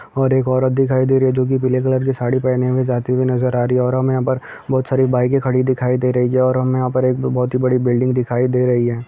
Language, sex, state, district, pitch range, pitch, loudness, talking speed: Hindi, male, Bihar, Gopalganj, 125-130 Hz, 130 Hz, -17 LUFS, 285 wpm